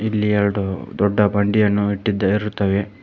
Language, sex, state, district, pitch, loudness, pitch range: Kannada, male, Karnataka, Koppal, 100 Hz, -19 LUFS, 100-105 Hz